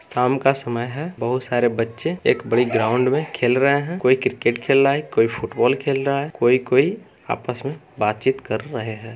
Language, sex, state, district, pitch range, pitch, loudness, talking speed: Hindi, male, Bihar, Darbhanga, 120-140 Hz, 125 Hz, -20 LUFS, 205 wpm